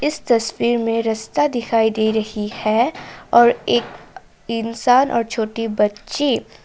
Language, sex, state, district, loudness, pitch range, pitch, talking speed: Hindi, female, Assam, Kamrup Metropolitan, -19 LUFS, 220-240 Hz, 230 Hz, 125 wpm